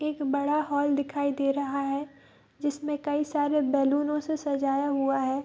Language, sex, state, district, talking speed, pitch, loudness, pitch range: Hindi, female, Bihar, Madhepura, 175 wpm, 285 Hz, -28 LUFS, 275-295 Hz